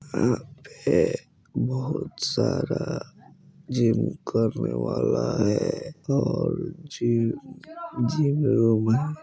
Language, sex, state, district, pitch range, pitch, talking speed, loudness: Bajjika, male, Bihar, Vaishali, 115-165 Hz, 145 Hz, 85 wpm, -25 LUFS